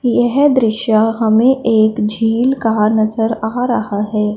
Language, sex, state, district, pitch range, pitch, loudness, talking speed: Hindi, female, Punjab, Fazilka, 215-240 Hz, 225 Hz, -14 LUFS, 135 wpm